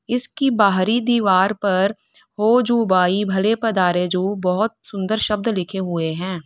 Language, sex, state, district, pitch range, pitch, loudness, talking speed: Hindi, female, Uttar Pradesh, Lalitpur, 185-225 Hz, 200 Hz, -19 LUFS, 150 wpm